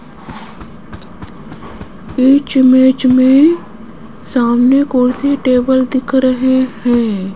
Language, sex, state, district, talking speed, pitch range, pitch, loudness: Hindi, female, Rajasthan, Jaipur, 75 wpm, 250-265 Hz, 260 Hz, -12 LUFS